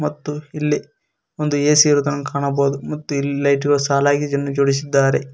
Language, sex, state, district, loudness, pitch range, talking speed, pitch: Kannada, male, Karnataka, Koppal, -18 LUFS, 140-150 Hz, 145 wpm, 145 Hz